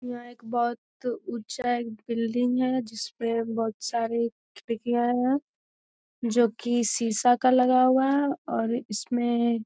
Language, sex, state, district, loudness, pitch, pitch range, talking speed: Hindi, female, Bihar, Jamui, -26 LUFS, 240 Hz, 230-250 Hz, 135 wpm